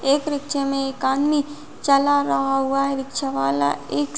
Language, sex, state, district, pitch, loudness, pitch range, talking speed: Hindi, female, Uttar Pradesh, Muzaffarnagar, 275 Hz, -21 LUFS, 265-285 Hz, 170 wpm